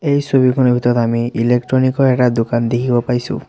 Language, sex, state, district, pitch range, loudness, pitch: Assamese, male, Assam, Sonitpur, 120-130 Hz, -15 LUFS, 125 Hz